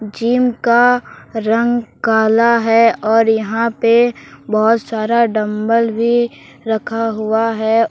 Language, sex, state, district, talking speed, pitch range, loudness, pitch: Hindi, male, Jharkhand, Deoghar, 115 wpm, 220-235 Hz, -15 LUFS, 230 Hz